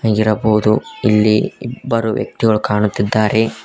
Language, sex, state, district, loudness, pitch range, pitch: Kannada, male, Karnataka, Koppal, -16 LUFS, 105-110 Hz, 110 Hz